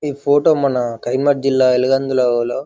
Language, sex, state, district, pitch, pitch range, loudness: Telugu, male, Telangana, Karimnagar, 135 Hz, 125-140 Hz, -16 LUFS